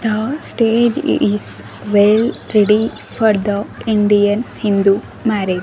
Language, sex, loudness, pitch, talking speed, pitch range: English, female, -15 LUFS, 210 Hz, 105 wpm, 200-225 Hz